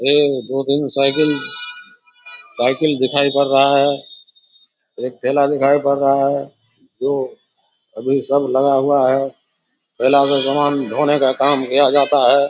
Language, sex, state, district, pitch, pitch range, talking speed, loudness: Hindi, male, Bihar, Samastipur, 140 Hz, 135-145 Hz, 145 wpm, -16 LUFS